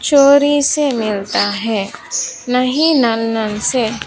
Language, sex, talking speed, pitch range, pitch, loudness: Hindi, female, 120 wpm, 215-285 Hz, 240 Hz, -15 LUFS